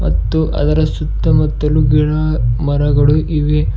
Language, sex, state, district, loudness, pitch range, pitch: Kannada, male, Karnataka, Bidar, -15 LUFS, 120-150 Hz, 150 Hz